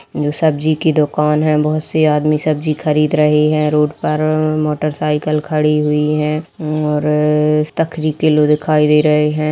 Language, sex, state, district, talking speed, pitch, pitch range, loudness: Hindi, female, Chhattisgarh, Kabirdham, 160 wpm, 150 Hz, 150-155 Hz, -15 LUFS